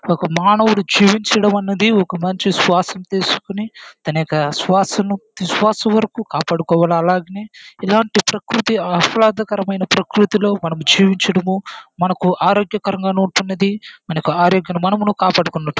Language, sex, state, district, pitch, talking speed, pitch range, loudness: Telugu, male, Andhra Pradesh, Chittoor, 195 Hz, 95 wpm, 180-210 Hz, -16 LUFS